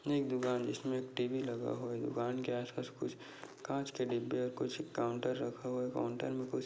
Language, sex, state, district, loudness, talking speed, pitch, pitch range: Hindi, male, Chhattisgarh, Bastar, -38 LUFS, 215 wpm, 125 Hz, 120-130 Hz